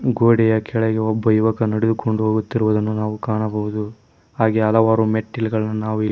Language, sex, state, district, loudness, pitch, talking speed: Kannada, male, Karnataka, Koppal, -19 LUFS, 110 Hz, 125 wpm